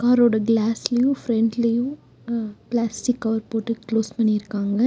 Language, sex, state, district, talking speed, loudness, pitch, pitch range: Tamil, female, Tamil Nadu, Nilgiris, 110 wpm, -22 LUFS, 230 Hz, 220-240 Hz